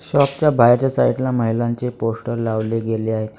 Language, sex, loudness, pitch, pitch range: Marathi, male, -19 LUFS, 120 Hz, 115-125 Hz